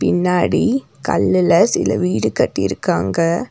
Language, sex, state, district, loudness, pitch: Tamil, female, Tamil Nadu, Nilgiris, -17 LUFS, 165 Hz